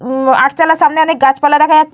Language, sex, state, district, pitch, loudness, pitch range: Bengali, female, Jharkhand, Jamtara, 300 Hz, -10 LUFS, 265-315 Hz